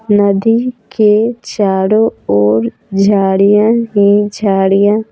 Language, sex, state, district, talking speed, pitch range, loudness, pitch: Hindi, female, Bihar, Patna, 80 wpm, 195-220 Hz, -12 LUFS, 205 Hz